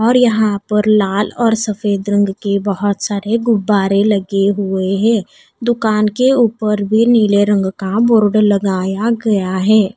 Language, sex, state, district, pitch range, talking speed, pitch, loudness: Hindi, female, Odisha, Nuapada, 200-225 Hz, 150 wpm, 210 Hz, -14 LUFS